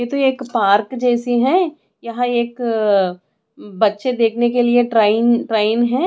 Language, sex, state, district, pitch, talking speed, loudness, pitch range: Hindi, female, Odisha, Khordha, 240 Hz, 160 wpm, -17 LUFS, 220-245 Hz